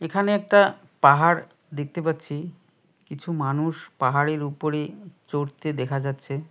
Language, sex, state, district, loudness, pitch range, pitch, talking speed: Bengali, male, West Bengal, Cooch Behar, -23 LUFS, 145-170 Hz, 155 Hz, 110 wpm